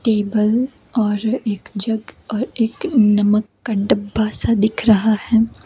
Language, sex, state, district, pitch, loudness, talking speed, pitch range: Hindi, female, Himachal Pradesh, Shimla, 220 Hz, -18 LUFS, 140 wpm, 210-230 Hz